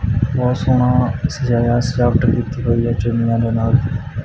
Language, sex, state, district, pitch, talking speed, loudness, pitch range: Punjabi, male, Punjab, Kapurthala, 120 Hz, 140 wpm, -17 LUFS, 115-125 Hz